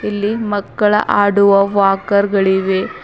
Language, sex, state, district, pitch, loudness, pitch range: Kannada, female, Karnataka, Bidar, 200 Hz, -14 LUFS, 195-205 Hz